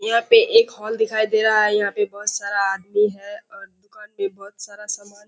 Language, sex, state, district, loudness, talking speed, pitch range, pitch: Hindi, female, Bihar, Kishanganj, -19 LUFS, 240 wpm, 205-220 Hz, 210 Hz